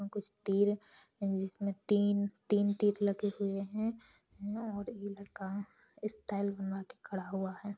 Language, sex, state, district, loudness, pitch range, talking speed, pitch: Hindi, female, Chhattisgarh, Rajnandgaon, -36 LUFS, 195-205 Hz, 140 wpm, 205 Hz